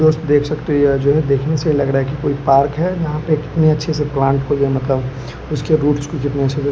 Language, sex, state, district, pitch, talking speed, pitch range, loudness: Hindi, male, Bihar, West Champaran, 145 Hz, 275 wpm, 140-155 Hz, -17 LUFS